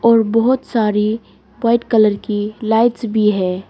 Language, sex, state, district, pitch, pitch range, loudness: Hindi, female, Arunachal Pradesh, Lower Dibang Valley, 220 Hz, 210-230 Hz, -16 LUFS